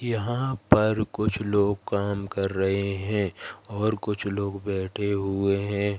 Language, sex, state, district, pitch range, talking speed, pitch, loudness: Hindi, male, Madhya Pradesh, Katni, 100-105 Hz, 140 wpm, 100 Hz, -26 LUFS